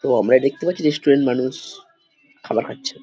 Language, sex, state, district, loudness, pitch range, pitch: Bengali, male, West Bengal, Dakshin Dinajpur, -19 LUFS, 130-180 Hz, 150 Hz